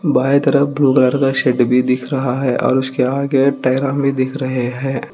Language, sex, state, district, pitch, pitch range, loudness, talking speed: Hindi, female, Telangana, Hyderabad, 135 Hz, 130-140 Hz, -16 LUFS, 185 wpm